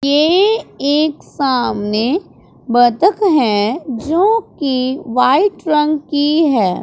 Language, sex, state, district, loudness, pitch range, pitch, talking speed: Hindi, male, Punjab, Pathankot, -15 LUFS, 250-330 Hz, 290 Hz, 95 wpm